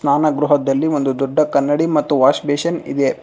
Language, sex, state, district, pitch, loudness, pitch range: Kannada, male, Karnataka, Bangalore, 145 Hz, -16 LUFS, 140-150 Hz